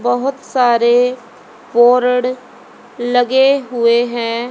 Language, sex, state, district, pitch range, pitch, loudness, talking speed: Hindi, female, Haryana, Charkhi Dadri, 240-255 Hz, 245 Hz, -14 LUFS, 80 wpm